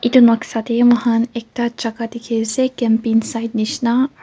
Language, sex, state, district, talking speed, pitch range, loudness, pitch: Nagamese, female, Nagaland, Kohima, 155 wpm, 230-240 Hz, -17 LUFS, 235 Hz